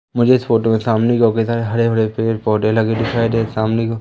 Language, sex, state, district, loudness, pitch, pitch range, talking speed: Hindi, male, Madhya Pradesh, Umaria, -16 LUFS, 115 Hz, 110-115 Hz, 225 wpm